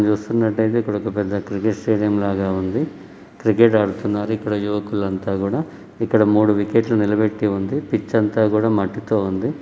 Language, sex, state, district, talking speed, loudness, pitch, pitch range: Telugu, male, Telangana, Nalgonda, 170 wpm, -20 LUFS, 105 Hz, 100-110 Hz